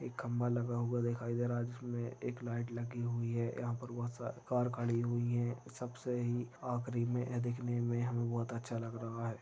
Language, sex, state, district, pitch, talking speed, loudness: Hindi, male, Maharashtra, Chandrapur, 120 Hz, 215 wpm, -38 LUFS